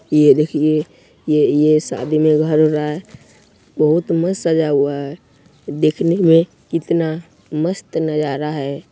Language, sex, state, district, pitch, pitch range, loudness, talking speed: Hindi, male, Bihar, Jamui, 155 Hz, 150-165 Hz, -17 LUFS, 130 wpm